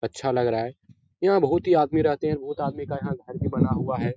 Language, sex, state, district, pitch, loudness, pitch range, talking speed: Hindi, male, Bihar, Jahanabad, 140 Hz, -24 LUFS, 120-155 Hz, 275 wpm